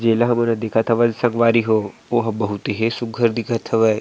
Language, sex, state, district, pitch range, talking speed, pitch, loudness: Chhattisgarhi, male, Chhattisgarh, Sarguja, 110-115 Hz, 195 wpm, 115 Hz, -19 LUFS